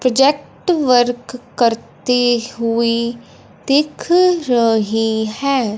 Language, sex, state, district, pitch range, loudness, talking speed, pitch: Hindi, male, Punjab, Fazilka, 230-275 Hz, -16 LUFS, 70 wpm, 245 Hz